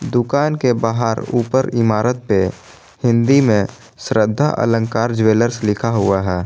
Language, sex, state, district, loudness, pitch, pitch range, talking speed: Hindi, male, Jharkhand, Garhwa, -17 LUFS, 115 Hz, 110-125 Hz, 130 wpm